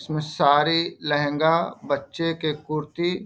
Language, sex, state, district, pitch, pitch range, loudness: Hindi, male, Bihar, Bhagalpur, 155 Hz, 145-165 Hz, -23 LUFS